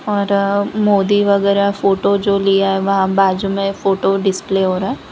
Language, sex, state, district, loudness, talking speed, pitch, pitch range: Hindi, female, Gujarat, Valsad, -15 LUFS, 175 wpm, 195 Hz, 195-200 Hz